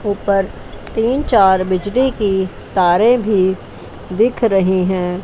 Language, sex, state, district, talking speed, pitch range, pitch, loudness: Hindi, female, Chandigarh, Chandigarh, 115 wpm, 185-225 Hz, 195 Hz, -15 LUFS